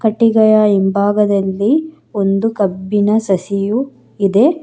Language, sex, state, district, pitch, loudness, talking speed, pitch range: Kannada, female, Karnataka, Bangalore, 210 Hz, -14 LUFS, 80 wpm, 200-225 Hz